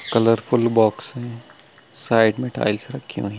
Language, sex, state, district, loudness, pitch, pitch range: Hindi, male, Chhattisgarh, Bilaspur, -20 LUFS, 115 Hz, 110-125 Hz